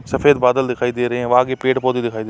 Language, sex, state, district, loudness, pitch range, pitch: Hindi, male, Uttar Pradesh, Varanasi, -17 LUFS, 120-130 Hz, 125 Hz